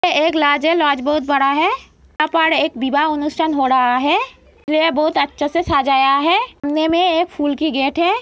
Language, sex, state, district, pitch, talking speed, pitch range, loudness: Hindi, female, Uttar Pradesh, Gorakhpur, 305 Hz, 195 wpm, 285-330 Hz, -16 LUFS